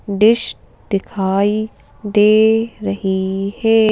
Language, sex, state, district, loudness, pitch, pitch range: Hindi, female, Madhya Pradesh, Bhopal, -16 LUFS, 210 Hz, 195-220 Hz